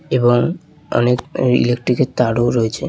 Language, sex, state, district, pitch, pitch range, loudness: Bengali, male, West Bengal, Jalpaiguri, 125 Hz, 120-140 Hz, -17 LUFS